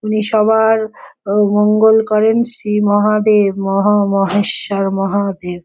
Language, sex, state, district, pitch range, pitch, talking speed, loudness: Bengali, female, West Bengal, Jhargram, 200-215 Hz, 210 Hz, 105 wpm, -14 LUFS